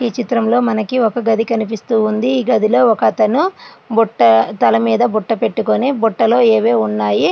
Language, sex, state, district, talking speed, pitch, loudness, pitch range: Telugu, female, Andhra Pradesh, Srikakulam, 150 wpm, 225 Hz, -14 LUFS, 220-240 Hz